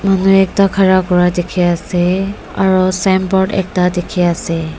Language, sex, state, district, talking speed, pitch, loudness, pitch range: Nagamese, female, Nagaland, Dimapur, 115 wpm, 185 Hz, -14 LUFS, 180-190 Hz